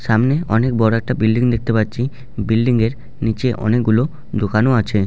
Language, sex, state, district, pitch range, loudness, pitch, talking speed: Bengali, male, West Bengal, Jalpaiguri, 110-125 Hz, -17 LUFS, 115 Hz, 165 wpm